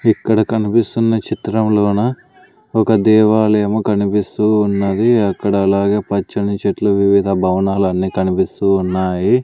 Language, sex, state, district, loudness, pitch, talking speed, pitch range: Telugu, male, Andhra Pradesh, Sri Satya Sai, -15 LUFS, 100 Hz, 95 wpm, 100-110 Hz